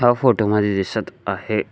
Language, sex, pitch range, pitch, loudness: Marathi, male, 105-120 Hz, 105 Hz, -20 LUFS